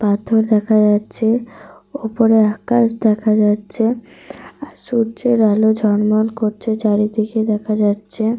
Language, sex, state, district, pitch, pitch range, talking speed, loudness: Bengali, female, Jharkhand, Sahebganj, 220 Hz, 210-225 Hz, 105 wpm, -16 LUFS